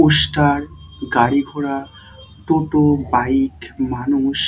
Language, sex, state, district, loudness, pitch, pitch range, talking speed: Bengali, male, West Bengal, Dakshin Dinajpur, -18 LUFS, 135 Hz, 120-145 Hz, 95 wpm